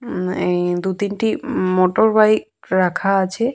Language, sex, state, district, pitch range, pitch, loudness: Bengali, female, West Bengal, Purulia, 185-215 Hz, 190 Hz, -18 LUFS